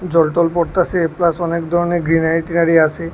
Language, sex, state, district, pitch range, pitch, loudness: Bengali, male, Tripura, West Tripura, 165-175 Hz, 170 Hz, -16 LUFS